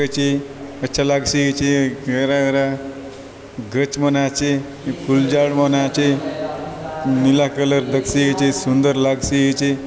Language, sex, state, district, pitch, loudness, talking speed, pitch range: Halbi, male, Chhattisgarh, Bastar, 140 Hz, -18 LUFS, 140 wpm, 135-140 Hz